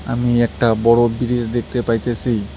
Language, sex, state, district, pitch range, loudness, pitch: Bengali, male, West Bengal, Cooch Behar, 115-120 Hz, -17 LUFS, 120 Hz